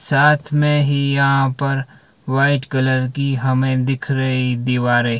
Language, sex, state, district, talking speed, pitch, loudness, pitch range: Hindi, male, Himachal Pradesh, Shimla, 140 wpm, 135 Hz, -17 LUFS, 130-140 Hz